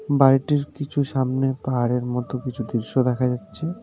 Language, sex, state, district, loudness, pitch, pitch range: Bengali, male, West Bengal, Darjeeling, -23 LUFS, 130 Hz, 125-140 Hz